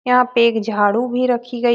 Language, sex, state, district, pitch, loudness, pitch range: Hindi, female, Bihar, Saran, 240 Hz, -17 LUFS, 230-250 Hz